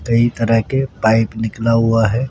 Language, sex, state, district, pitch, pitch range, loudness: Hindi, male, Rajasthan, Jaipur, 115 Hz, 110-120 Hz, -16 LUFS